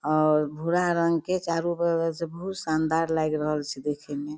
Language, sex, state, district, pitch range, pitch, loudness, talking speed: Maithili, female, Bihar, Darbhanga, 150-170 Hz, 160 Hz, -26 LUFS, 190 wpm